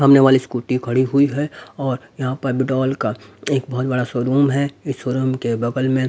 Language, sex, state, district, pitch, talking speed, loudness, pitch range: Hindi, male, Haryana, Rohtak, 130 Hz, 205 wpm, -19 LUFS, 125-140 Hz